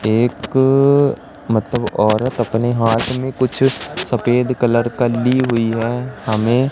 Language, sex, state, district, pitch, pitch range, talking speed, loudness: Hindi, male, Madhya Pradesh, Katni, 120 Hz, 115-130 Hz, 125 wpm, -17 LUFS